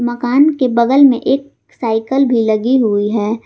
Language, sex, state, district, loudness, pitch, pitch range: Hindi, female, Jharkhand, Garhwa, -13 LUFS, 240 Hz, 225-270 Hz